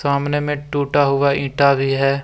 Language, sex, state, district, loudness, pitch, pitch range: Hindi, male, Jharkhand, Deoghar, -18 LUFS, 140 Hz, 140-145 Hz